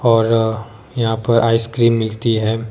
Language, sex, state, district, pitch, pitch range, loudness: Hindi, male, Himachal Pradesh, Shimla, 115 Hz, 110-115 Hz, -16 LUFS